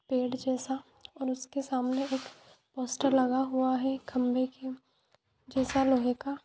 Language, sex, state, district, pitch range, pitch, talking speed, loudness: Hindi, female, Jharkhand, Jamtara, 255-270 Hz, 260 Hz, 140 wpm, -31 LUFS